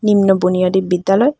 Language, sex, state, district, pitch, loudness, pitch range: Bengali, female, Tripura, West Tripura, 195 Hz, -14 LUFS, 185-205 Hz